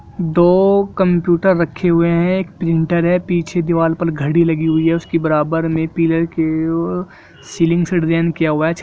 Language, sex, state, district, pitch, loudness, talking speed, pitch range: Hindi, male, Jharkhand, Jamtara, 170 Hz, -16 LUFS, 190 wpm, 165-175 Hz